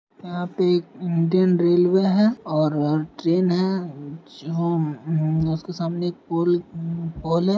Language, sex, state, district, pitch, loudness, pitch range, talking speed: Hindi, male, Uttar Pradesh, Deoria, 170 Hz, -22 LUFS, 160-180 Hz, 140 wpm